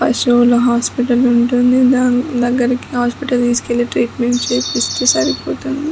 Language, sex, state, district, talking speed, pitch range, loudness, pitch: Telugu, female, Andhra Pradesh, Chittoor, 100 wpm, 240-250 Hz, -14 LUFS, 245 Hz